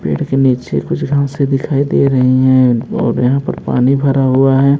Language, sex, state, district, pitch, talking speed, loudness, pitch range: Hindi, male, Bihar, Kaimur, 135 Hz, 200 wpm, -13 LUFS, 130-140 Hz